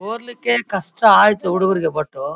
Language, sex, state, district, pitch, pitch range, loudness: Kannada, male, Karnataka, Bellary, 195 Hz, 180-230 Hz, -16 LUFS